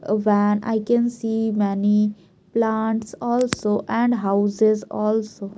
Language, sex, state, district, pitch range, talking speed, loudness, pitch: English, female, Maharashtra, Mumbai Suburban, 205-225 Hz, 120 wpm, -21 LUFS, 215 Hz